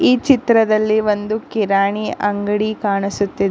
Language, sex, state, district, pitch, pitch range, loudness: Kannada, female, Karnataka, Koppal, 210 Hz, 200-220 Hz, -17 LUFS